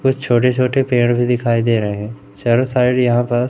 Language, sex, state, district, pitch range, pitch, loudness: Hindi, male, Madhya Pradesh, Umaria, 115-125 Hz, 120 Hz, -16 LUFS